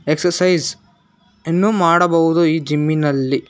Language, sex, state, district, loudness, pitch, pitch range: Kannada, male, Karnataka, Bangalore, -16 LUFS, 165 Hz, 150-175 Hz